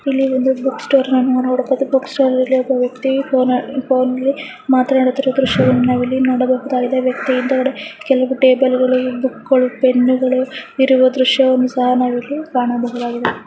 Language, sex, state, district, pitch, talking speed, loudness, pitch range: Kannada, female, Karnataka, Raichur, 260 Hz, 150 wpm, -15 LUFS, 255-265 Hz